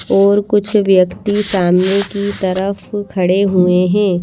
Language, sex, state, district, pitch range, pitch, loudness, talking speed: Hindi, female, Madhya Pradesh, Bhopal, 185-205 Hz, 195 Hz, -14 LUFS, 125 wpm